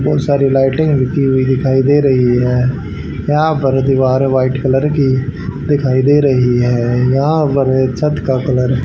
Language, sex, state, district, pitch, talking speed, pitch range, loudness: Hindi, male, Haryana, Charkhi Dadri, 135 Hz, 165 wpm, 130-140 Hz, -13 LUFS